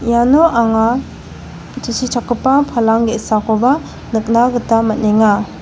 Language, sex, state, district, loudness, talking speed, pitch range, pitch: Garo, female, Meghalaya, West Garo Hills, -14 LUFS, 85 wpm, 220-250 Hz, 230 Hz